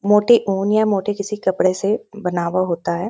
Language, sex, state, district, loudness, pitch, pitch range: Hindi, female, Uttarakhand, Uttarkashi, -18 LUFS, 200 Hz, 185-210 Hz